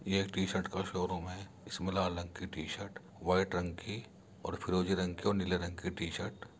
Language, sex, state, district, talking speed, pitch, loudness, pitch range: Hindi, male, Uttar Pradesh, Muzaffarnagar, 220 wpm, 95 Hz, -37 LUFS, 90-95 Hz